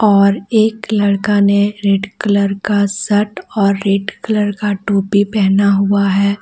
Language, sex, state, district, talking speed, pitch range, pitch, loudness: Hindi, female, Jharkhand, Deoghar, 150 wpm, 200-210 Hz, 200 Hz, -14 LUFS